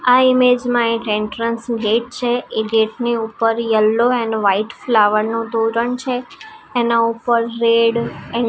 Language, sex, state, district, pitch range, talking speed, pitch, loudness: Gujarati, female, Gujarat, Gandhinagar, 225-240 Hz, 155 wpm, 230 Hz, -17 LUFS